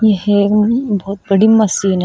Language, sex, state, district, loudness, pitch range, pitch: Hindi, female, Uttar Pradesh, Shamli, -13 LUFS, 200-215 Hz, 205 Hz